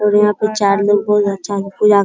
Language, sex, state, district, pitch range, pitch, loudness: Hindi, male, Bihar, Araria, 200-210 Hz, 205 Hz, -15 LUFS